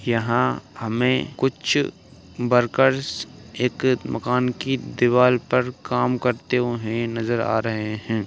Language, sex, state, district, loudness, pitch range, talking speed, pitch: Hindi, male, Uttar Pradesh, Ghazipur, -22 LUFS, 115-125 Hz, 115 wpm, 120 Hz